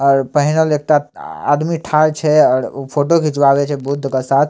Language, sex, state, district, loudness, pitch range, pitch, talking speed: Maithili, male, Bihar, Samastipur, -15 LUFS, 140-155 Hz, 145 Hz, 185 wpm